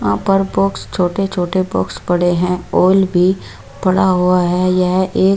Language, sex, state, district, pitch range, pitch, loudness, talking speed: Hindi, female, Bihar, Samastipur, 180-190 Hz, 185 Hz, -15 LUFS, 170 wpm